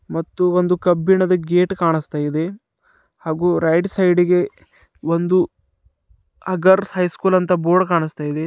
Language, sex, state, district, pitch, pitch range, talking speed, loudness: Kannada, male, Karnataka, Bidar, 175 Hz, 160-185 Hz, 105 wpm, -18 LUFS